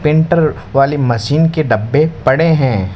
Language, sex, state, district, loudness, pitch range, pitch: Hindi, male, Rajasthan, Bikaner, -13 LUFS, 125-155 Hz, 145 Hz